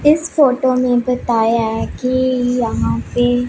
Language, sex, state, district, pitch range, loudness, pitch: Hindi, female, Punjab, Pathankot, 245-255 Hz, -16 LUFS, 250 Hz